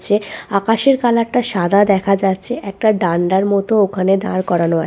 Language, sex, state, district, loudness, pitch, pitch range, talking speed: Bengali, female, West Bengal, Purulia, -16 LUFS, 200 Hz, 190-220 Hz, 160 wpm